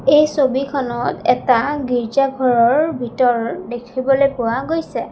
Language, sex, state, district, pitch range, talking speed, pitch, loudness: Assamese, female, Assam, Sonitpur, 240-275 Hz, 95 wpm, 260 Hz, -17 LUFS